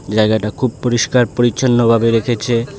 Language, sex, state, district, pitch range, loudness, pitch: Bengali, male, Tripura, West Tripura, 115-125 Hz, -15 LUFS, 120 Hz